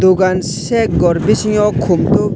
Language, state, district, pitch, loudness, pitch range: Kokborok, Tripura, West Tripura, 185 Hz, -14 LUFS, 175-210 Hz